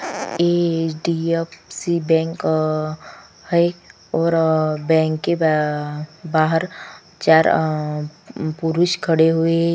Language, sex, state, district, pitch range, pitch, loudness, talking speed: Hindi, female, Chhattisgarh, Kabirdham, 155-170 Hz, 160 Hz, -19 LUFS, 105 wpm